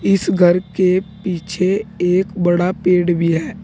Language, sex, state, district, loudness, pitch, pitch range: Hindi, male, Uttar Pradesh, Saharanpur, -17 LUFS, 180 Hz, 175-190 Hz